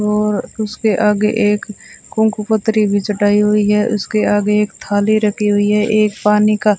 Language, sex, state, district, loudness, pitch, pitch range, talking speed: Hindi, female, Rajasthan, Bikaner, -15 LUFS, 210 Hz, 210-215 Hz, 185 wpm